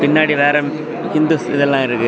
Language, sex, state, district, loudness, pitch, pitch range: Tamil, male, Tamil Nadu, Kanyakumari, -16 LUFS, 145 Hz, 140-155 Hz